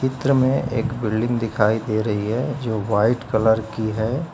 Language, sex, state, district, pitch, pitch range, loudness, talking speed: Hindi, male, Uttar Pradesh, Lucknow, 115 Hz, 110-130 Hz, -21 LUFS, 180 wpm